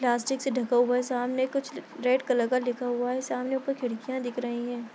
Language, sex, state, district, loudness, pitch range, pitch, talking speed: Hindi, female, Bihar, Bhagalpur, -28 LUFS, 245-260 Hz, 250 Hz, 245 wpm